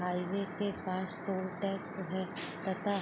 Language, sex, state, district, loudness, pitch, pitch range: Hindi, female, Jharkhand, Sahebganj, -35 LUFS, 190 Hz, 185-200 Hz